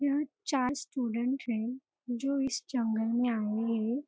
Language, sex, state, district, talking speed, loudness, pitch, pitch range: Hindi, female, Maharashtra, Nagpur, 145 wpm, -32 LUFS, 250 Hz, 230-275 Hz